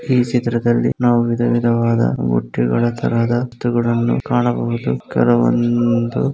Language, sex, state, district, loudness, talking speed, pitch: Kannada, male, Karnataka, Gulbarga, -17 LUFS, 85 wpm, 115 Hz